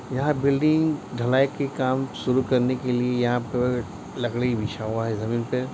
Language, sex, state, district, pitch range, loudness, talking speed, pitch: Hindi, male, Chhattisgarh, Bastar, 120-135 Hz, -24 LUFS, 180 wpm, 125 Hz